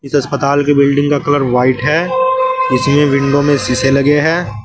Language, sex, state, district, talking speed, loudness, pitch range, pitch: Hindi, male, Uttar Pradesh, Saharanpur, 180 wpm, -12 LUFS, 140-150 Hz, 145 Hz